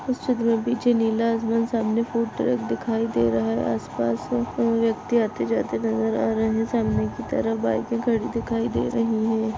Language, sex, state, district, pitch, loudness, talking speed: Hindi, female, Goa, North and South Goa, 225 Hz, -24 LUFS, 195 wpm